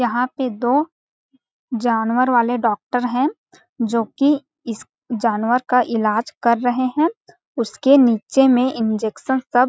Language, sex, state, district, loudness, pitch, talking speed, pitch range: Hindi, female, Chhattisgarh, Balrampur, -19 LUFS, 245 Hz, 130 wpm, 235-270 Hz